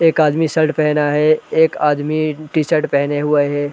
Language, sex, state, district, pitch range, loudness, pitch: Hindi, male, Uttar Pradesh, Gorakhpur, 145-155 Hz, -16 LUFS, 150 Hz